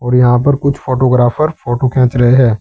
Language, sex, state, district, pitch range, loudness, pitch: Hindi, male, Uttar Pradesh, Saharanpur, 125-130 Hz, -12 LUFS, 125 Hz